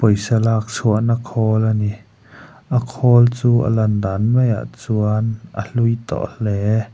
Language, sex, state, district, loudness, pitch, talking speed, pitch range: Mizo, male, Mizoram, Aizawl, -18 LUFS, 110 Hz, 155 wpm, 110-120 Hz